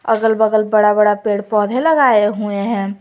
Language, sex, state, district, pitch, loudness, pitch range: Hindi, female, Jharkhand, Garhwa, 210 Hz, -15 LUFS, 205-225 Hz